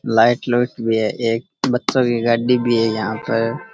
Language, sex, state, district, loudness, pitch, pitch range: Rajasthani, male, Rajasthan, Churu, -18 LUFS, 115 Hz, 115-125 Hz